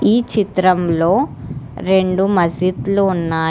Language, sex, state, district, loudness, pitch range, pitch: Telugu, female, Telangana, Hyderabad, -16 LUFS, 165-190 Hz, 185 Hz